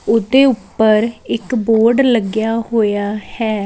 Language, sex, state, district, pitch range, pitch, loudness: Punjabi, female, Chandigarh, Chandigarh, 215-235 Hz, 225 Hz, -15 LUFS